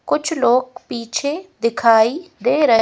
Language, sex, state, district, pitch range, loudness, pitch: Hindi, female, Madhya Pradesh, Bhopal, 230-305 Hz, -17 LUFS, 245 Hz